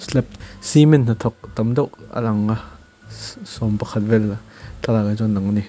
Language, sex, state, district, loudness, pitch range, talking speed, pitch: Mizo, male, Mizoram, Aizawl, -19 LUFS, 105-115 Hz, 180 wpm, 110 Hz